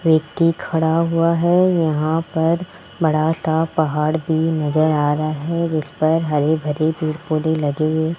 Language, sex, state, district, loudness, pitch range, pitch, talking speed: Hindi, male, Rajasthan, Jaipur, -19 LUFS, 155-165 Hz, 160 Hz, 160 wpm